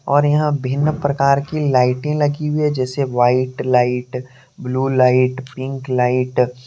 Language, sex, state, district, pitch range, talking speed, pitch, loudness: Hindi, male, Jharkhand, Deoghar, 125-145 Hz, 155 wpm, 130 Hz, -17 LUFS